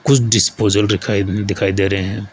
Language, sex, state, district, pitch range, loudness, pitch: Hindi, male, Rajasthan, Jaipur, 100-105 Hz, -16 LUFS, 100 Hz